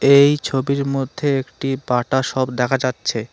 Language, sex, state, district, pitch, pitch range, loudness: Bengali, male, West Bengal, Alipurduar, 135 Hz, 130-140 Hz, -19 LUFS